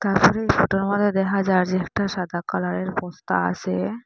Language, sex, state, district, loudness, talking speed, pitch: Bengali, female, Assam, Hailakandi, -22 LUFS, 205 wpm, 185 Hz